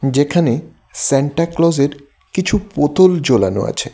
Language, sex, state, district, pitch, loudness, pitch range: Bengali, male, Tripura, West Tripura, 145 Hz, -16 LUFS, 140-175 Hz